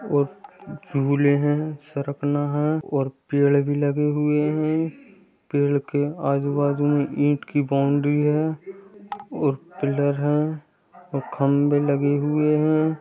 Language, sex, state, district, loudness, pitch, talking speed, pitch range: Hindi, male, Uttar Pradesh, Gorakhpur, -22 LUFS, 145 Hz, 125 wpm, 140-155 Hz